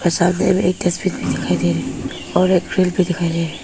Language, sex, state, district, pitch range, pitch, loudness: Hindi, female, Arunachal Pradesh, Papum Pare, 165-185 Hz, 180 Hz, -18 LUFS